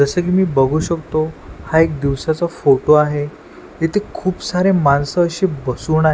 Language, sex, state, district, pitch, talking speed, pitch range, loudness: Marathi, male, Maharashtra, Washim, 160 Hz, 165 wpm, 145-175 Hz, -17 LUFS